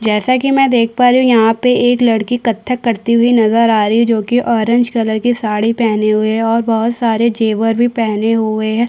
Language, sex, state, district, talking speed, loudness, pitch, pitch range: Hindi, female, Chhattisgarh, Korba, 235 wpm, -13 LUFS, 230 Hz, 220-240 Hz